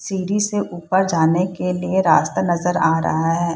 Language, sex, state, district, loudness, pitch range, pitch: Hindi, female, Bihar, Purnia, -19 LUFS, 165-190 Hz, 180 Hz